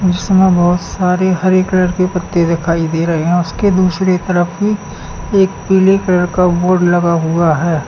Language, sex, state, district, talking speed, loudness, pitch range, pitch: Hindi, male, Uttar Pradesh, Lalitpur, 175 wpm, -13 LUFS, 170-185 Hz, 180 Hz